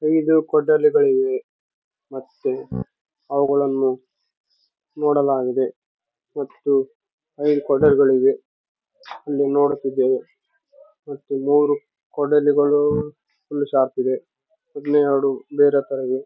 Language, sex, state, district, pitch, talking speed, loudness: Kannada, male, Karnataka, Raichur, 145 Hz, 75 wpm, -20 LUFS